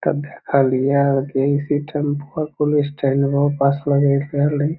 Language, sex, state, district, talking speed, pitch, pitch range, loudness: Magahi, male, Bihar, Lakhisarai, 165 wpm, 145 Hz, 140-145 Hz, -19 LUFS